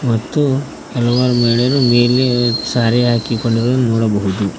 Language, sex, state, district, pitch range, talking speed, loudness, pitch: Kannada, male, Karnataka, Koppal, 115-125 Hz, 90 wpm, -15 LUFS, 120 Hz